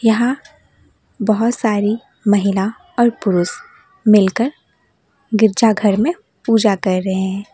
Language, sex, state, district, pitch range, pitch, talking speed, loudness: Hindi, female, West Bengal, Alipurduar, 200-240 Hz, 220 Hz, 105 wpm, -16 LUFS